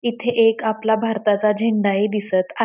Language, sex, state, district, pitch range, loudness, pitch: Marathi, female, Maharashtra, Pune, 210-225 Hz, -19 LUFS, 220 Hz